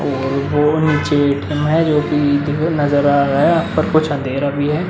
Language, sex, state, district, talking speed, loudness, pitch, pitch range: Hindi, male, Bihar, Vaishali, 195 wpm, -16 LUFS, 145 Hz, 140-155 Hz